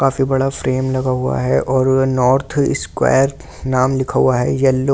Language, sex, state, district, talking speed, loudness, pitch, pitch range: Hindi, male, Delhi, New Delhi, 195 wpm, -16 LUFS, 130 Hz, 130-135 Hz